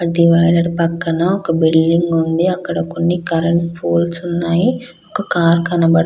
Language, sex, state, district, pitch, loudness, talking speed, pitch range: Telugu, female, Andhra Pradesh, Krishna, 170 Hz, -15 LUFS, 140 wpm, 165-170 Hz